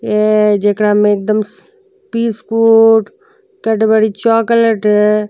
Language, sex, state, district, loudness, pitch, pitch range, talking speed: Bhojpuri, female, Uttar Pradesh, Deoria, -12 LUFS, 220 Hz, 210-230 Hz, 100 wpm